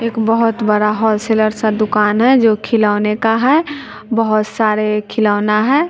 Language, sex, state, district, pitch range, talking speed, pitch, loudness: Hindi, female, Bihar, West Champaran, 210-230 Hz, 165 wpm, 220 Hz, -14 LUFS